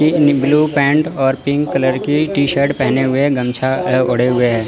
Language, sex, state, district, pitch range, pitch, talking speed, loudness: Hindi, male, Chandigarh, Chandigarh, 130-145 Hz, 135 Hz, 205 wpm, -15 LUFS